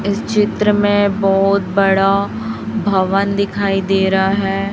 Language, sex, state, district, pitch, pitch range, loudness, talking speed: Hindi, female, Chhattisgarh, Raipur, 195 Hz, 195-200 Hz, -15 LUFS, 125 wpm